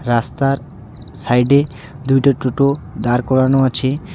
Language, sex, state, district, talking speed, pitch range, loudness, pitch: Bengali, male, West Bengal, Alipurduar, 100 wpm, 130-140 Hz, -16 LUFS, 135 Hz